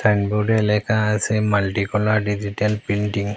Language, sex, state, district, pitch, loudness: Bengali, male, Assam, Hailakandi, 105 Hz, -20 LUFS